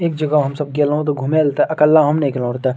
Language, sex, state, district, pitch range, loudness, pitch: Maithili, male, Bihar, Madhepura, 140-150 Hz, -16 LUFS, 150 Hz